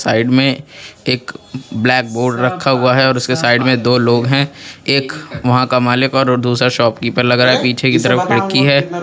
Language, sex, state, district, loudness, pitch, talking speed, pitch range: Hindi, male, Jharkhand, Garhwa, -13 LUFS, 125 Hz, 200 wpm, 125-135 Hz